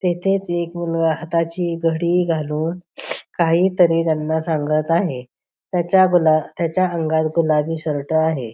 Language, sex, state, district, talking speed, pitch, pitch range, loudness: Marathi, female, Maharashtra, Pune, 120 wpm, 165 Hz, 160-175 Hz, -19 LUFS